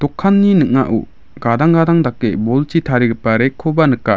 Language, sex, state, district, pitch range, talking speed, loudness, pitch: Garo, male, Meghalaya, West Garo Hills, 115-165 Hz, 115 wpm, -14 LUFS, 130 Hz